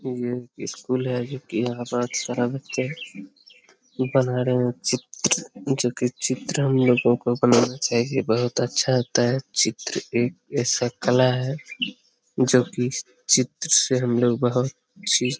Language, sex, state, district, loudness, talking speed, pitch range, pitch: Hindi, male, Bihar, Jamui, -23 LUFS, 150 wpm, 120-130 Hz, 125 Hz